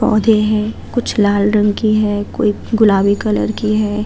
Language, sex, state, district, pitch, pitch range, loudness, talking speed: Hindi, female, Uttar Pradesh, Budaun, 210 Hz, 205-215 Hz, -15 LUFS, 175 wpm